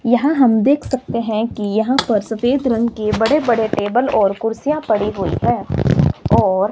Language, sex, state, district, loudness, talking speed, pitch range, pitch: Hindi, male, Himachal Pradesh, Shimla, -17 LUFS, 185 wpm, 215-260 Hz, 225 Hz